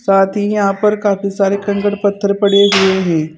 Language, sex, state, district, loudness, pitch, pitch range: Hindi, female, Uttar Pradesh, Saharanpur, -14 LUFS, 200 Hz, 195-205 Hz